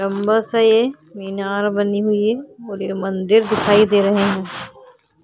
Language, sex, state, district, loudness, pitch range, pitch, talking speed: Hindi, female, Uttar Pradesh, Jyotiba Phule Nagar, -17 LUFS, 200-220 Hz, 205 Hz, 135 wpm